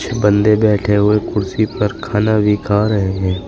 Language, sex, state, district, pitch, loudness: Hindi, male, Uttar Pradesh, Shamli, 105 Hz, -15 LUFS